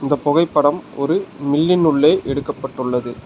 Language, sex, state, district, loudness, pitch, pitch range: Tamil, male, Tamil Nadu, Nilgiris, -17 LUFS, 145 Hz, 135-150 Hz